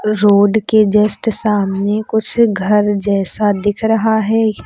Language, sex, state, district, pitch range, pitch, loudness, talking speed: Hindi, female, Uttar Pradesh, Lucknow, 205-220 Hz, 210 Hz, -14 LUFS, 130 wpm